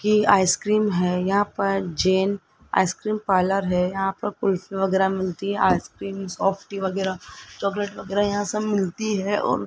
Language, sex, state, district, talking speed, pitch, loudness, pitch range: Hindi, male, Rajasthan, Jaipur, 165 wpm, 195 Hz, -23 LUFS, 190-205 Hz